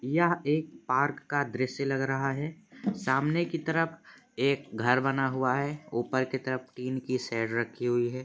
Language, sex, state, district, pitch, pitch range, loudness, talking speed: Hindi, male, Jharkhand, Sahebganj, 135 Hz, 130-150 Hz, -30 LUFS, 165 wpm